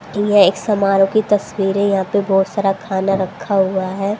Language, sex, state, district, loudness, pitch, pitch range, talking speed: Hindi, female, Haryana, Charkhi Dadri, -16 LUFS, 195 Hz, 195-205 Hz, 185 wpm